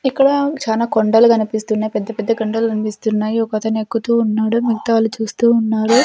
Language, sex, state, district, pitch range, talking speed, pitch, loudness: Telugu, female, Andhra Pradesh, Sri Satya Sai, 220-230 Hz, 160 wpm, 225 Hz, -17 LUFS